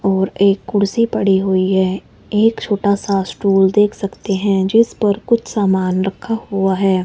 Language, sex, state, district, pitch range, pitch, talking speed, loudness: Hindi, male, Himachal Pradesh, Shimla, 190-210 Hz, 200 Hz, 170 wpm, -16 LUFS